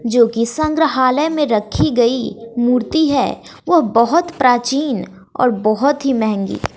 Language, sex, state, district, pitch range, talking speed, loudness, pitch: Hindi, female, Bihar, West Champaran, 230-290 Hz, 135 wpm, -16 LUFS, 250 Hz